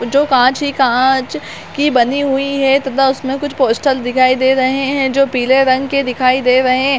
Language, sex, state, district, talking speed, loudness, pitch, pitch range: Hindi, female, Chhattisgarh, Bilaspur, 205 wpm, -13 LUFS, 265 Hz, 255-275 Hz